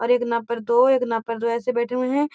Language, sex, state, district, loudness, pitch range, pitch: Magahi, female, Bihar, Gaya, -22 LUFS, 235-250 Hz, 240 Hz